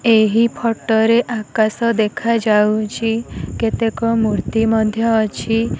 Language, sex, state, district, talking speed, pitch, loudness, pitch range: Odia, female, Odisha, Nuapada, 105 wpm, 225 Hz, -17 LUFS, 220-230 Hz